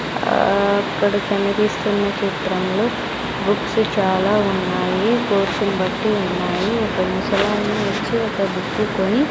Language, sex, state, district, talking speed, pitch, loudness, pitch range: Telugu, female, Andhra Pradesh, Sri Satya Sai, 110 wpm, 200 Hz, -19 LUFS, 190-210 Hz